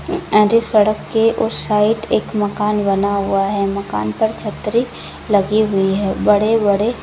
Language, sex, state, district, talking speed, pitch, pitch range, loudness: Hindi, female, Uttarakhand, Uttarkashi, 170 wpm, 210 Hz, 200-220 Hz, -16 LUFS